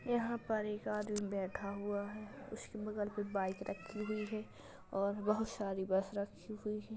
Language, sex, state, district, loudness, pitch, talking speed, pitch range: Hindi, female, Uttar Pradesh, Jalaun, -40 LUFS, 210 Hz, 180 wpm, 200-215 Hz